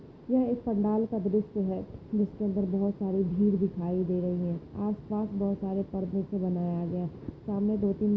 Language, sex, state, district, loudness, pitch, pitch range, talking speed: Hindi, female, Maharashtra, Nagpur, -30 LUFS, 200 Hz, 190-210 Hz, 185 wpm